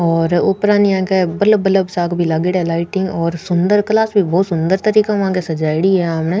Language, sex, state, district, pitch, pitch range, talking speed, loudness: Rajasthani, female, Rajasthan, Nagaur, 185 Hz, 170-200 Hz, 205 wpm, -15 LUFS